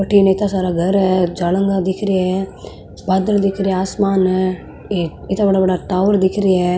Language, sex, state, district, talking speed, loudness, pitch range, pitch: Marwari, female, Rajasthan, Nagaur, 170 wpm, -17 LUFS, 185-195 Hz, 190 Hz